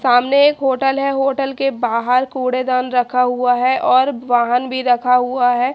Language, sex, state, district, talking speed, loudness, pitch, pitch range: Hindi, female, Haryana, Charkhi Dadri, 190 wpm, -16 LUFS, 255 Hz, 245-270 Hz